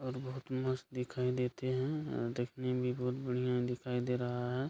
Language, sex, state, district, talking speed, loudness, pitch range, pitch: Hindi, male, Bihar, Madhepura, 190 wpm, -37 LUFS, 125-130 Hz, 125 Hz